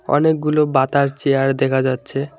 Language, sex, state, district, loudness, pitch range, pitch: Bengali, male, West Bengal, Alipurduar, -18 LUFS, 135-145 Hz, 140 Hz